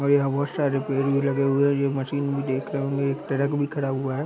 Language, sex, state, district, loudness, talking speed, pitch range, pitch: Hindi, male, Chhattisgarh, Korba, -24 LUFS, 295 wpm, 135-140 Hz, 140 Hz